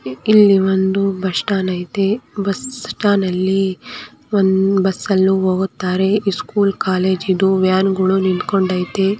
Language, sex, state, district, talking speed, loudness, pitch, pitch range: Kannada, female, Karnataka, Belgaum, 85 wpm, -16 LUFS, 190 Hz, 185-200 Hz